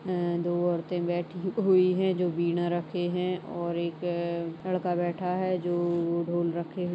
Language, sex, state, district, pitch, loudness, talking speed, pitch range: Hindi, female, Chhattisgarh, Kabirdham, 175 Hz, -29 LUFS, 155 wpm, 170-180 Hz